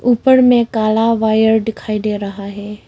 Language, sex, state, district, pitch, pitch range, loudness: Hindi, female, Arunachal Pradesh, Longding, 220 Hz, 210-230 Hz, -14 LUFS